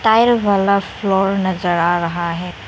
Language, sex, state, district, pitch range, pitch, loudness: Hindi, female, Arunachal Pradesh, Lower Dibang Valley, 175-200 Hz, 190 Hz, -16 LUFS